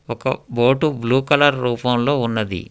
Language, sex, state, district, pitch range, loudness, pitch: Telugu, male, Telangana, Hyderabad, 120-135 Hz, -18 LUFS, 125 Hz